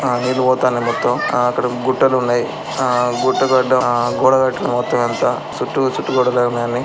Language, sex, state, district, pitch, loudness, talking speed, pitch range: Telugu, male, Andhra Pradesh, Srikakulam, 125 Hz, -16 LUFS, 185 wpm, 120-130 Hz